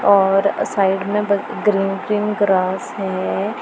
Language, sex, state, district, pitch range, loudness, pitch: Hindi, female, Punjab, Pathankot, 195-205 Hz, -18 LUFS, 195 Hz